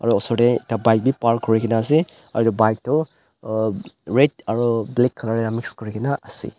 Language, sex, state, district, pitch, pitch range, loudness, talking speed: Nagamese, male, Nagaland, Dimapur, 115 Hz, 110-125 Hz, -20 LUFS, 175 wpm